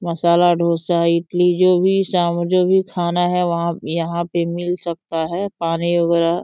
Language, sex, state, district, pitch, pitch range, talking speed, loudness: Hindi, female, Uttar Pradesh, Deoria, 170 Hz, 170-180 Hz, 175 wpm, -18 LUFS